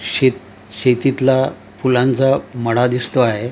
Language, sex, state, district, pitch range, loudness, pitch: Marathi, male, Maharashtra, Gondia, 120-130 Hz, -16 LUFS, 125 Hz